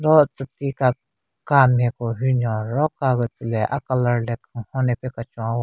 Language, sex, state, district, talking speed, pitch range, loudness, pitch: Rengma, female, Nagaland, Kohima, 235 wpm, 115-135 Hz, -21 LUFS, 125 Hz